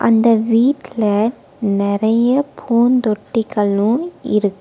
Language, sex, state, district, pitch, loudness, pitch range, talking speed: Tamil, female, Tamil Nadu, Nilgiris, 225 Hz, -16 LUFS, 210-250 Hz, 65 wpm